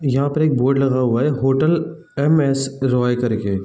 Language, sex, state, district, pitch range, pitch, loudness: Hindi, male, Bihar, East Champaran, 125-150 Hz, 135 Hz, -18 LUFS